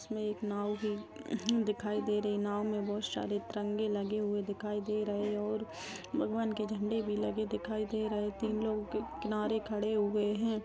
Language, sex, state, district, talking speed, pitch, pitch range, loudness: Hindi, female, Maharashtra, Pune, 190 wpm, 210 Hz, 210-215 Hz, -35 LUFS